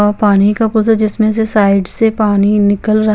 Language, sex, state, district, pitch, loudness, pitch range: Hindi, female, Chandigarh, Chandigarh, 215 Hz, -12 LUFS, 205-220 Hz